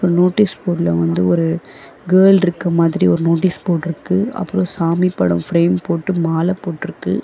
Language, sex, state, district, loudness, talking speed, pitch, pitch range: Tamil, female, Tamil Nadu, Chennai, -16 LUFS, 135 wpm, 170 Hz, 165-185 Hz